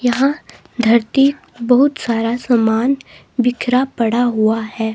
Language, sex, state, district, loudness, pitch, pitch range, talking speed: Hindi, female, Himachal Pradesh, Shimla, -16 LUFS, 240 Hz, 230-265 Hz, 110 wpm